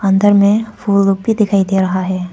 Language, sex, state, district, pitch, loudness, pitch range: Hindi, female, Arunachal Pradesh, Papum Pare, 200 Hz, -13 LUFS, 190-205 Hz